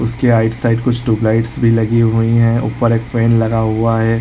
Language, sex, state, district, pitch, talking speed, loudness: Hindi, male, Chhattisgarh, Raigarh, 115 Hz, 225 wpm, -14 LUFS